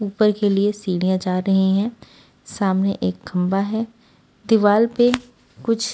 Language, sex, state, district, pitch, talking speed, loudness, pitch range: Hindi, female, Haryana, Rohtak, 205 Hz, 140 wpm, -20 LUFS, 190-225 Hz